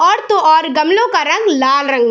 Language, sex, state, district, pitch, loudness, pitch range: Hindi, female, Bihar, Saharsa, 315 Hz, -12 LUFS, 280-420 Hz